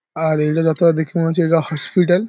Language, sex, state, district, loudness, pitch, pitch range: Bengali, male, West Bengal, Paschim Medinipur, -17 LUFS, 165 Hz, 160-175 Hz